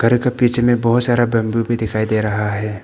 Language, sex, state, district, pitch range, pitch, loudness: Hindi, male, Arunachal Pradesh, Papum Pare, 110-120 Hz, 115 Hz, -16 LUFS